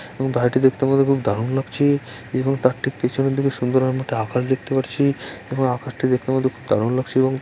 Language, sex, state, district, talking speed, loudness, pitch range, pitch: Bengali, male, West Bengal, Jalpaiguri, 180 wpm, -21 LUFS, 125-135 Hz, 130 Hz